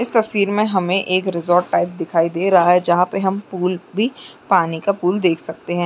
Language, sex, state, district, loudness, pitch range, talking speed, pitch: Chhattisgarhi, female, Chhattisgarh, Jashpur, -18 LUFS, 175-195 Hz, 225 wpm, 180 Hz